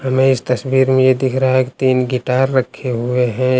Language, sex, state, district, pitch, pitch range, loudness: Hindi, male, Uttar Pradesh, Lucknow, 130 Hz, 125-130 Hz, -16 LUFS